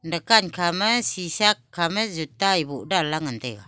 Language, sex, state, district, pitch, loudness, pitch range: Wancho, female, Arunachal Pradesh, Longding, 175 Hz, -22 LUFS, 155-210 Hz